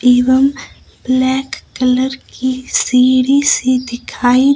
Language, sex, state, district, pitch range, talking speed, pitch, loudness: Hindi, female, Himachal Pradesh, Shimla, 250-270 Hz, 90 wpm, 255 Hz, -14 LUFS